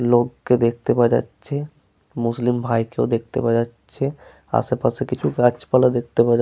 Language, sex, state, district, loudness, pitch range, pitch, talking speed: Bengali, male, West Bengal, Paschim Medinipur, -21 LUFS, 115-125 Hz, 120 Hz, 160 wpm